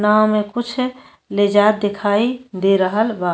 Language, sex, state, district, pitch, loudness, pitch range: Bhojpuri, female, Uttar Pradesh, Ghazipur, 210 Hz, -17 LUFS, 205-235 Hz